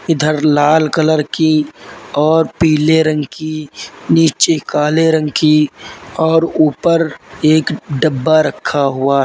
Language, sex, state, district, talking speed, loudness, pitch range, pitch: Hindi, male, Uttar Pradesh, Lalitpur, 125 wpm, -13 LUFS, 150-160 Hz, 155 Hz